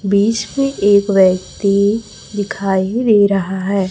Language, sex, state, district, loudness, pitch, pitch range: Hindi, male, Chhattisgarh, Raipur, -15 LUFS, 200 Hz, 195-210 Hz